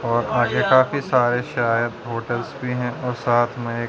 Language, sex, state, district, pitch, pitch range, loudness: Hindi, male, Haryana, Rohtak, 120 Hz, 120-125 Hz, -21 LUFS